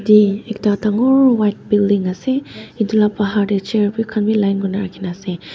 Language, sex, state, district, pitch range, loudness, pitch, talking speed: Nagamese, female, Nagaland, Dimapur, 200-220 Hz, -17 LUFS, 210 Hz, 215 wpm